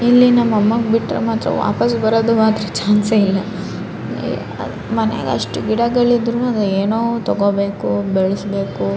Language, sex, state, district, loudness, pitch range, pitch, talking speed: Kannada, female, Karnataka, Raichur, -17 LUFS, 200-230 Hz, 220 Hz, 105 wpm